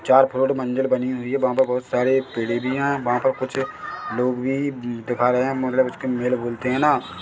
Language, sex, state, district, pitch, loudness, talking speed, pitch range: Hindi, male, Chhattisgarh, Bilaspur, 130 Hz, -22 LUFS, 235 wpm, 125-135 Hz